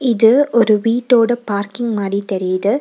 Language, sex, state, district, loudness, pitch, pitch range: Tamil, female, Tamil Nadu, Nilgiris, -15 LUFS, 225 Hz, 200-240 Hz